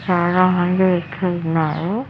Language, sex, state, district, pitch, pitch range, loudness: Telugu, female, Andhra Pradesh, Annamaya, 180 Hz, 170-185 Hz, -18 LUFS